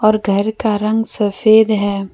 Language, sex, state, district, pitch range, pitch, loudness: Hindi, female, Jharkhand, Deoghar, 205-220 Hz, 215 Hz, -15 LUFS